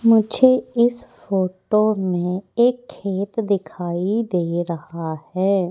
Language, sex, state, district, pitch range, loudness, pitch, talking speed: Hindi, female, Madhya Pradesh, Katni, 175-225 Hz, -21 LUFS, 195 Hz, 105 wpm